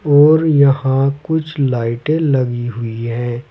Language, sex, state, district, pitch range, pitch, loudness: Hindi, male, Uttar Pradesh, Saharanpur, 120-150 Hz, 135 Hz, -15 LUFS